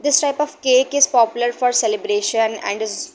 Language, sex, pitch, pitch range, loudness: English, female, 240 Hz, 220-280 Hz, -18 LUFS